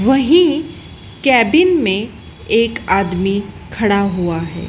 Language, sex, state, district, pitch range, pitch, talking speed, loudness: Hindi, female, Madhya Pradesh, Dhar, 195-275 Hz, 220 Hz, 100 wpm, -15 LUFS